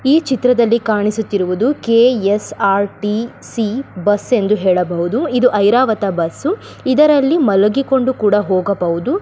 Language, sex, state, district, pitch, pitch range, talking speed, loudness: Kannada, female, Karnataka, Bellary, 220 Hz, 200-260 Hz, 90 wpm, -15 LUFS